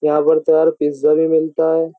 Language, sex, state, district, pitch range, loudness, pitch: Hindi, male, Uttar Pradesh, Jyotiba Phule Nagar, 150-160 Hz, -15 LUFS, 160 Hz